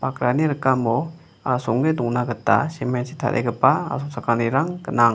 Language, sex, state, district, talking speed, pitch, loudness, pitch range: Garo, male, Meghalaya, West Garo Hills, 115 wpm, 125 Hz, -21 LUFS, 120-145 Hz